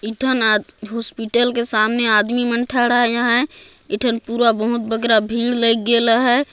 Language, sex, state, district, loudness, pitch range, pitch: Chhattisgarhi, female, Chhattisgarh, Jashpur, -16 LUFS, 225-245 Hz, 235 Hz